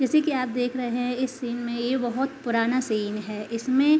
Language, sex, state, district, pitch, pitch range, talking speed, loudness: Hindi, female, Uttar Pradesh, Hamirpur, 245 Hz, 235-260 Hz, 255 wpm, -26 LUFS